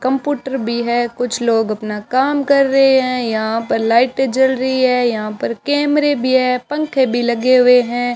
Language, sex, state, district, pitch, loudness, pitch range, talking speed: Hindi, male, Rajasthan, Bikaner, 255 Hz, -15 LUFS, 235-265 Hz, 190 wpm